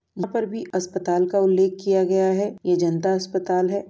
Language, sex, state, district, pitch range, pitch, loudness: Hindi, female, Uttar Pradesh, Jyotiba Phule Nagar, 180-195 Hz, 190 Hz, -22 LUFS